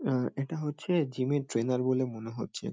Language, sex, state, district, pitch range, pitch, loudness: Bengali, male, West Bengal, Kolkata, 125-145 Hz, 130 Hz, -31 LUFS